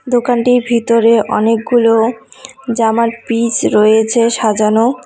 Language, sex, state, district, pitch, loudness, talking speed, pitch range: Bengali, female, West Bengal, Cooch Behar, 230 Hz, -12 LUFS, 85 wpm, 225-240 Hz